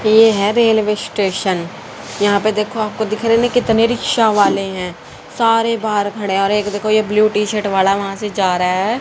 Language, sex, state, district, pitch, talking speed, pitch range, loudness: Hindi, female, Haryana, Rohtak, 210 Hz, 215 wpm, 200-220 Hz, -16 LUFS